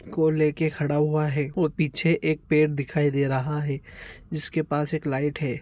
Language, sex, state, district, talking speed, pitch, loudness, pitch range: Hindi, male, Karnataka, Gulbarga, 190 wpm, 150 Hz, -25 LUFS, 145-155 Hz